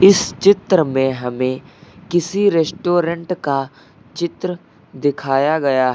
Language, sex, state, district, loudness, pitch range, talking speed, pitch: Hindi, male, Uttar Pradesh, Lucknow, -18 LUFS, 135-180 Hz, 100 wpm, 160 Hz